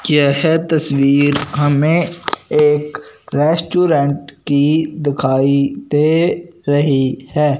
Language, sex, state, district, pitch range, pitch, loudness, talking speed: Hindi, male, Punjab, Fazilka, 140-155 Hz, 145 Hz, -15 LUFS, 80 wpm